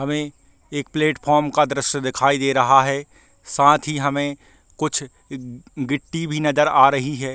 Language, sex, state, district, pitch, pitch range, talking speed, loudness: Hindi, male, Chhattisgarh, Balrampur, 140 Hz, 135-150 Hz, 165 wpm, -19 LUFS